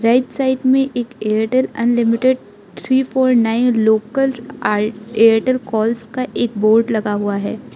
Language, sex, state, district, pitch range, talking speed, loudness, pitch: Hindi, female, Arunachal Pradesh, Lower Dibang Valley, 220-255 Hz, 145 wpm, -17 LUFS, 235 Hz